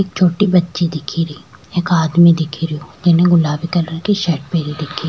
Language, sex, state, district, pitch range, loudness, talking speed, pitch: Rajasthani, female, Rajasthan, Churu, 160-175 Hz, -16 LUFS, 190 wpm, 170 Hz